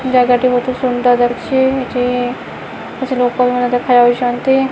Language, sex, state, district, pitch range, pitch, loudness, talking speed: Odia, female, Odisha, Khordha, 245-260 Hz, 250 Hz, -14 LUFS, 115 wpm